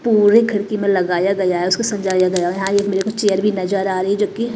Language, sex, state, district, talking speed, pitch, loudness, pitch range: Hindi, female, Maharashtra, Mumbai Suburban, 235 wpm, 195 Hz, -17 LUFS, 185-210 Hz